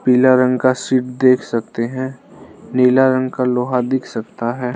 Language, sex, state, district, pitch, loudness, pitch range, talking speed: Hindi, male, Arunachal Pradesh, Lower Dibang Valley, 125 Hz, -16 LUFS, 125-130 Hz, 175 wpm